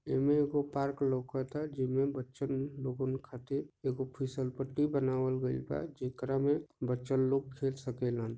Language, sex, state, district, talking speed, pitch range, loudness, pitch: Bhojpuri, male, Jharkhand, Sahebganj, 155 wpm, 130-140 Hz, -35 LUFS, 135 Hz